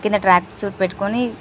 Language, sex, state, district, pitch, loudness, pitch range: Telugu, female, Telangana, Karimnagar, 200 Hz, -19 LUFS, 190-210 Hz